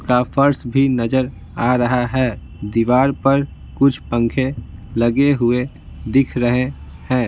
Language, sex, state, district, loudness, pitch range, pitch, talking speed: Hindi, male, Bihar, Patna, -18 LUFS, 120-135 Hz, 125 Hz, 130 wpm